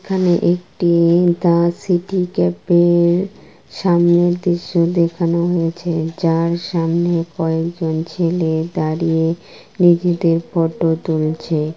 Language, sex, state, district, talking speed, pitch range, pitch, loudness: Bengali, female, West Bengal, Kolkata, 90 wpm, 165-175 Hz, 170 Hz, -17 LUFS